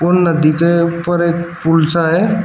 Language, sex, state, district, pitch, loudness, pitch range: Hindi, male, Uttar Pradesh, Shamli, 170 Hz, -14 LUFS, 165-175 Hz